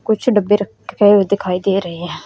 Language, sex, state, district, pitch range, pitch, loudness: Hindi, female, Haryana, Rohtak, 185-205 Hz, 200 Hz, -15 LUFS